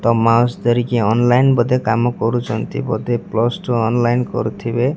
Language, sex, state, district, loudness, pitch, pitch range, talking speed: Odia, male, Odisha, Malkangiri, -17 LUFS, 120 Hz, 115-120 Hz, 110 wpm